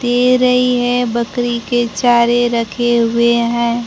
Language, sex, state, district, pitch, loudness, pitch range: Hindi, female, Bihar, Kaimur, 240 Hz, -14 LUFS, 235-245 Hz